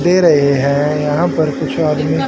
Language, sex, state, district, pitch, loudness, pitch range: Hindi, male, Haryana, Charkhi Dadri, 150 Hz, -14 LUFS, 140-155 Hz